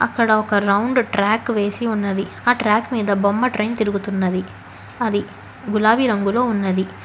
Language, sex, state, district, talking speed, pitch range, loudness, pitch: Telugu, female, Telangana, Hyderabad, 135 wpm, 200-230 Hz, -19 LUFS, 210 Hz